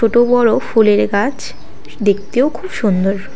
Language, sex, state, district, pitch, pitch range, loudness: Bengali, female, West Bengal, Alipurduar, 225 Hz, 200-250 Hz, -15 LUFS